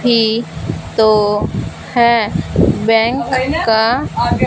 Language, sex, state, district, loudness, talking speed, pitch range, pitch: Hindi, female, Punjab, Fazilka, -14 LUFS, 65 wpm, 220-240 Hz, 225 Hz